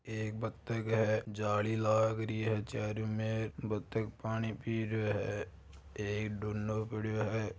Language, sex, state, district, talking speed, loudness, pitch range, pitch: Marwari, male, Rajasthan, Churu, 150 wpm, -36 LUFS, 105-110 Hz, 110 Hz